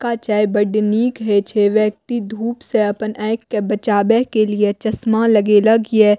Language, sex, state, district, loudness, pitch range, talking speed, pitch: Maithili, female, Bihar, Madhepura, -17 LUFS, 210-225 Hz, 175 wpm, 215 Hz